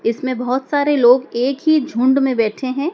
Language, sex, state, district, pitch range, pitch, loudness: Hindi, male, Madhya Pradesh, Dhar, 245-275 Hz, 260 Hz, -16 LUFS